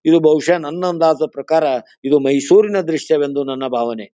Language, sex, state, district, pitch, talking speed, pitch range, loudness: Kannada, male, Karnataka, Bijapur, 155 Hz, 160 wpm, 140-165 Hz, -16 LUFS